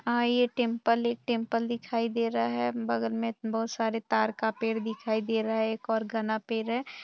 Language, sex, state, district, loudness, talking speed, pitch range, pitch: Hindi, female, Bihar, Purnia, -29 LUFS, 205 wpm, 220-230 Hz, 225 Hz